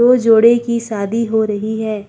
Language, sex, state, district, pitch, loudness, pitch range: Hindi, female, Uttarakhand, Tehri Garhwal, 225 Hz, -14 LUFS, 215-235 Hz